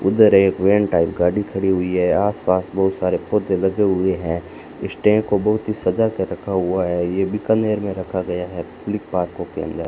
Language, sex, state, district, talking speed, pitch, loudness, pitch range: Hindi, male, Rajasthan, Bikaner, 205 wpm, 95 Hz, -19 LUFS, 90-105 Hz